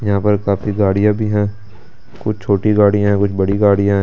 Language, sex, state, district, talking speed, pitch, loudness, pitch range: Hindi, male, Delhi, New Delhi, 210 wpm, 100 Hz, -15 LUFS, 100-105 Hz